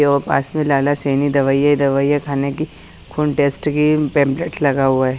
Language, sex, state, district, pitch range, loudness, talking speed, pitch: Hindi, female, Haryana, Charkhi Dadri, 140-150 Hz, -17 LUFS, 210 wpm, 140 Hz